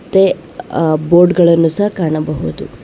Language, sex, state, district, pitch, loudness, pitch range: Kannada, female, Karnataka, Bangalore, 170 Hz, -13 LUFS, 160-185 Hz